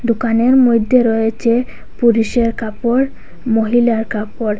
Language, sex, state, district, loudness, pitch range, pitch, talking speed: Bengali, female, Assam, Hailakandi, -15 LUFS, 225-240 Hz, 230 Hz, 90 wpm